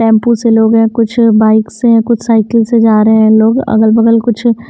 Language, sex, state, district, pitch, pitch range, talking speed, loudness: Hindi, female, Himachal Pradesh, Shimla, 225 Hz, 220-230 Hz, 230 wpm, -9 LUFS